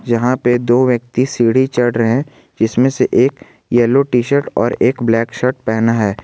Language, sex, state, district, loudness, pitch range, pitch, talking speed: Hindi, male, Jharkhand, Garhwa, -15 LUFS, 115-130 Hz, 120 Hz, 190 wpm